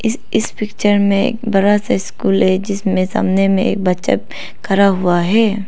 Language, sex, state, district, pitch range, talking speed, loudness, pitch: Hindi, female, Arunachal Pradesh, Lower Dibang Valley, 185-210 Hz, 180 wpm, -15 LUFS, 195 Hz